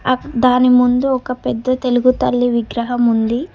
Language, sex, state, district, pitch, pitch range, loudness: Telugu, female, Telangana, Hyderabad, 250 Hz, 240-255 Hz, -15 LUFS